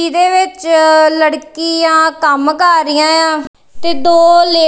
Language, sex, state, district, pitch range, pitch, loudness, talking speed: Punjabi, female, Punjab, Kapurthala, 310-340 Hz, 320 Hz, -10 LUFS, 140 wpm